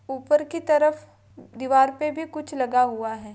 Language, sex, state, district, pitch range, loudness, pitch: Hindi, female, Maharashtra, Pune, 250-300 Hz, -23 LUFS, 270 Hz